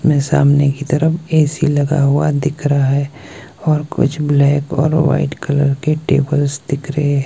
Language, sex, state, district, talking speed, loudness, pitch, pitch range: Hindi, male, Himachal Pradesh, Shimla, 165 wpm, -15 LUFS, 145 Hz, 140-150 Hz